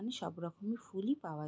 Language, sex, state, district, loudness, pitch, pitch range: Bengali, female, West Bengal, Jalpaiguri, -40 LUFS, 195 Hz, 170-230 Hz